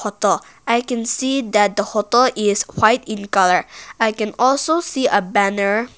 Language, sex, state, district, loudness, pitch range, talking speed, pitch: English, female, Nagaland, Kohima, -18 LUFS, 205-245 Hz, 170 wpm, 215 Hz